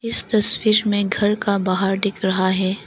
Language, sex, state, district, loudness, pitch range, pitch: Hindi, female, Arunachal Pradesh, Longding, -18 LUFS, 190-210 Hz, 200 Hz